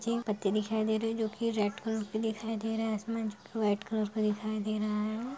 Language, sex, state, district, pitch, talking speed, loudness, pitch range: Hindi, female, Bihar, Saharsa, 220 Hz, 280 wpm, -33 LUFS, 210-225 Hz